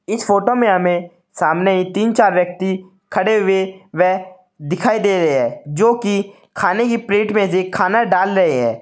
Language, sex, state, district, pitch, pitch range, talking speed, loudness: Hindi, male, Uttar Pradesh, Saharanpur, 190 Hz, 180-210 Hz, 175 wpm, -16 LUFS